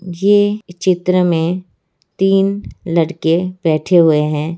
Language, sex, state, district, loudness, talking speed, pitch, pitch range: Hindi, female, Bihar, Muzaffarpur, -15 LUFS, 105 wpm, 175 Hz, 165-190 Hz